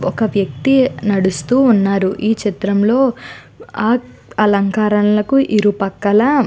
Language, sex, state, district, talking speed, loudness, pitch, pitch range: Telugu, female, Andhra Pradesh, Guntur, 95 wpm, -15 LUFS, 210 Hz, 200-245 Hz